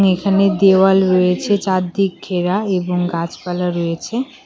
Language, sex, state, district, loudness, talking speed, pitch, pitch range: Bengali, female, West Bengal, Cooch Behar, -16 LUFS, 120 wpm, 185 Hz, 180-195 Hz